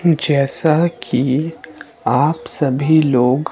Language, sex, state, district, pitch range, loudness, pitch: Hindi, male, Himachal Pradesh, Shimla, 135-160 Hz, -16 LUFS, 150 Hz